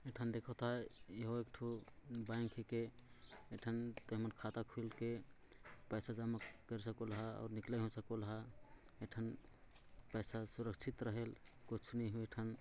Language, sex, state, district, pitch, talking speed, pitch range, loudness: Hindi, male, Chhattisgarh, Jashpur, 115 Hz, 150 wpm, 110-120 Hz, -47 LUFS